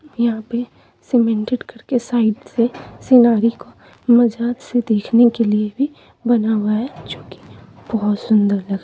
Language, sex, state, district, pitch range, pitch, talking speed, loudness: Hindi, female, West Bengal, Purulia, 220-240 Hz, 235 Hz, 150 wpm, -17 LUFS